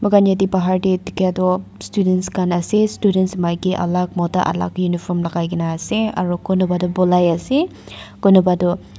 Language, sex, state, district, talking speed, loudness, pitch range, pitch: Nagamese, female, Nagaland, Dimapur, 140 wpm, -18 LUFS, 175-190 Hz, 185 Hz